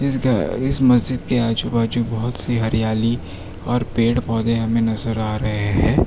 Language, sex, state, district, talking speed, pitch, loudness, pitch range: Hindi, male, Gujarat, Valsad, 160 wpm, 115 Hz, -19 LUFS, 110-120 Hz